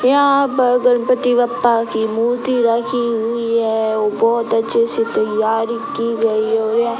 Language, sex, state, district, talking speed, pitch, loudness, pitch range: Hindi, male, Bihar, Sitamarhi, 170 wpm, 235 Hz, -16 LUFS, 225-250 Hz